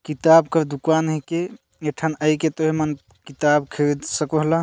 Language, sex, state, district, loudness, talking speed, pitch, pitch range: Chhattisgarhi, male, Chhattisgarh, Jashpur, -20 LUFS, 180 wpm, 155 Hz, 150-160 Hz